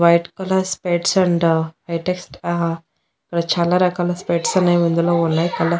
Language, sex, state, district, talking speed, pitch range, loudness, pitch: Telugu, female, Andhra Pradesh, Annamaya, 135 wpm, 170-180 Hz, -19 LUFS, 170 Hz